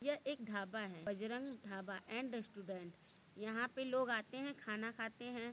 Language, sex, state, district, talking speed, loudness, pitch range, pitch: Hindi, female, Uttar Pradesh, Varanasi, 185 wpm, -44 LUFS, 200-250 Hz, 225 Hz